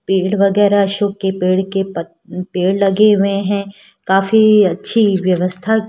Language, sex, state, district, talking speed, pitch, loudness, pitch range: Hindi, female, Rajasthan, Jaipur, 145 wpm, 195 Hz, -14 LUFS, 190-205 Hz